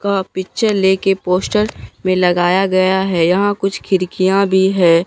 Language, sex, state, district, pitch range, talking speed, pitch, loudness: Hindi, female, Bihar, Katihar, 185-195 Hz, 165 wpm, 190 Hz, -15 LUFS